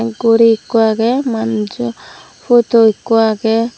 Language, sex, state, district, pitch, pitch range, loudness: Chakma, female, Tripura, Dhalai, 225 Hz, 215-230 Hz, -13 LUFS